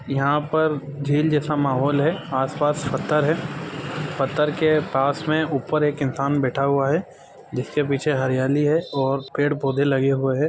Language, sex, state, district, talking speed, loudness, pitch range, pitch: Hindi, male, Chhattisgarh, Bilaspur, 165 wpm, -22 LUFS, 135-150 Hz, 145 Hz